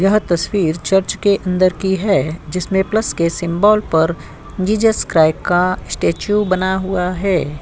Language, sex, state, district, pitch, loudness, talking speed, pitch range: Hindi, female, Uttar Pradesh, Jyotiba Phule Nagar, 185 Hz, -16 LUFS, 150 wpm, 170-200 Hz